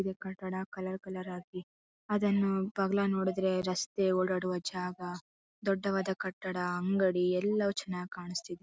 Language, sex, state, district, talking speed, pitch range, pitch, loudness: Kannada, female, Karnataka, Bellary, 110 wpm, 180-195 Hz, 185 Hz, -33 LUFS